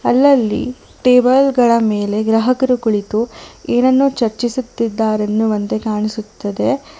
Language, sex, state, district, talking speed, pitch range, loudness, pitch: Kannada, female, Karnataka, Bangalore, 85 wpm, 215-255 Hz, -15 LUFS, 230 Hz